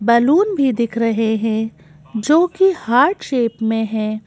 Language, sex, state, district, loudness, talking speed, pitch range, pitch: Hindi, female, Madhya Pradesh, Bhopal, -17 LUFS, 155 wpm, 220-285 Hz, 230 Hz